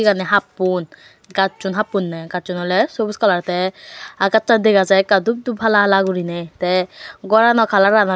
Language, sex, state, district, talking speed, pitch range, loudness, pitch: Chakma, female, Tripura, West Tripura, 160 wpm, 185-215 Hz, -17 LUFS, 195 Hz